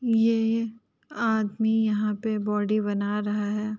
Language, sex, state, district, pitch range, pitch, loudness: Hindi, female, Uttar Pradesh, Ghazipur, 210-225 Hz, 215 Hz, -26 LUFS